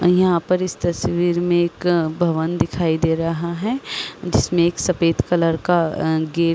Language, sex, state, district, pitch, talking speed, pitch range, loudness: Hindi, female, Chhattisgarh, Rajnandgaon, 170 Hz, 165 wpm, 165-175 Hz, -20 LUFS